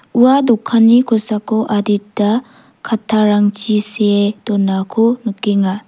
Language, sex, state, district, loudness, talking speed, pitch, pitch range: Garo, female, Meghalaya, South Garo Hills, -14 LUFS, 80 wpm, 215 Hz, 205-225 Hz